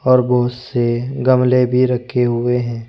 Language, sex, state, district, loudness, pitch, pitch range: Hindi, male, Uttar Pradesh, Saharanpur, -16 LUFS, 125 Hz, 120-125 Hz